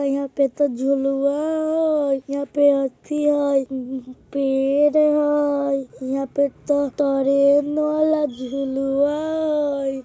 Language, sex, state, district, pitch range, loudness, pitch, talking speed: Bajjika, female, Bihar, Vaishali, 275-295 Hz, -20 LUFS, 280 Hz, 115 wpm